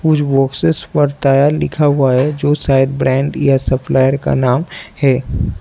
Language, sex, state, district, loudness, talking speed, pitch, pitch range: Hindi, male, Arunachal Pradesh, Lower Dibang Valley, -14 LUFS, 160 wpm, 135 Hz, 130-145 Hz